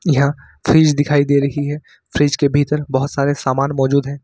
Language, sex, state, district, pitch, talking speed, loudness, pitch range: Hindi, male, Jharkhand, Ranchi, 145 Hz, 200 wpm, -16 LUFS, 140-145 Hz